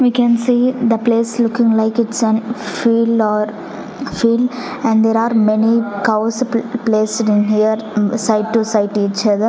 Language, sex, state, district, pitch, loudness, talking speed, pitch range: English, female, Punjab, Fazilka, 225 Hz, -15 LUFS, 165 wpm, 215-235 Hz